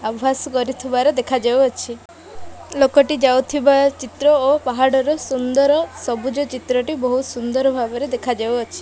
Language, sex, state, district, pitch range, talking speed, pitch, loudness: Odia, female, Odisha, Malkangiri, 250-280 Hz, 115 wpm, 260 Hz, -18 LUFS